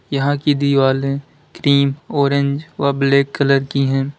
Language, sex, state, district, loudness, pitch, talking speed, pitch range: Hindi, male, Uttar Pradesh, Lalitpur, -17 LUFS, 140 Hz, 145 wpm, 135-140 Hz